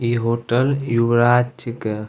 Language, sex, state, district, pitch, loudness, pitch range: Angika, male, Bihar, Bhagalpur, 120 Hz, -19 LUFS, 115-120 Hz